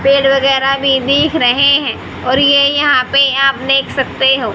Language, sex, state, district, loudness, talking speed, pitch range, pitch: Hindi, female, Haryana, Rohtak, -11 LUFS, 185 wpm, 265-280 Hz, 275 Hz